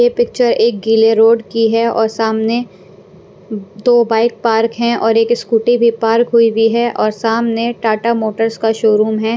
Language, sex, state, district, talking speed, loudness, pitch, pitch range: Hindi, female, Punjab, Pathankot, 180 wpm, -13 LUFS, 225 Hz, 220-235 Hz